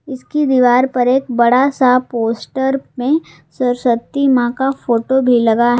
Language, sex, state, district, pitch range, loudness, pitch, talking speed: Hindi, female, Jharkhand, Garhwa, 240-270 Hz, -15 LUFS, 255 Hz, 145 wpm